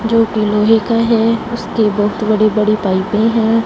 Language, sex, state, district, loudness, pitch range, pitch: Hindi, female, Punjab, Fazilka, -14 LUFS, 215-230 Hz, 220 Hz